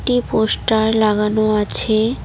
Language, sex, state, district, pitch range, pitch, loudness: Bengali, female, West Bengal, Cooch Behar, 215-220 Hz, 220 Hz, -16 LUFS